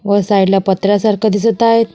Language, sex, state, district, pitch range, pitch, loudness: Marathi, female, Maharashtra, Solapur, 200-220 Hz, 205 Hz, -13 LUFS